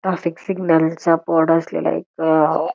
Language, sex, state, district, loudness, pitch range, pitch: Marathi, female, Karnataka, Belgaum, -18 LUFS, 160-170 Hz, 165 Hz